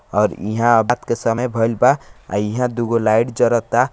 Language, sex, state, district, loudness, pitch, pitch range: Hindi, male, Bihar, Gopalganj, -18 LUFS, 115 Hz, 110-120 Hz